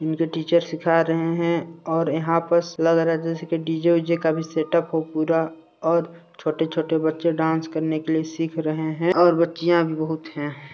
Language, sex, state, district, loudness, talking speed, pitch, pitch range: Hindi, male, Chhattisgarh, Sarguja, -22 LUFS, 185 wpm, 165 Hz, 160-165 Hz